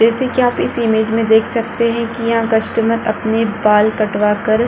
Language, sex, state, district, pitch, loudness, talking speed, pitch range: Hindi, female, Bihar, Kishanganj, 225 Hz, -15 LUFS, 220 wpm, 220-230 Hz